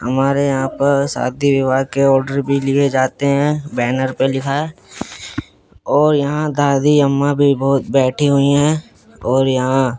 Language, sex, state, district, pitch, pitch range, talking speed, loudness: Hindi, male, Haryana, Jhajjar, 140 Hz, 135-145 Hz, 155 wpm, -16 LUFS